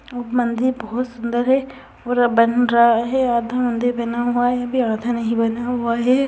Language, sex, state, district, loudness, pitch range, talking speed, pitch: Hindi, female, Uttar Pradesh, Varanasi, -19 LUFS, 235-250 Hz, 190 wpm, 240 Hz